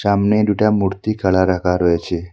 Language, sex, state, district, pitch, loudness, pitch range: Bengali, male, Assam, Hailakandi, 95 Hz, -17 LUFS, 90-105 Hz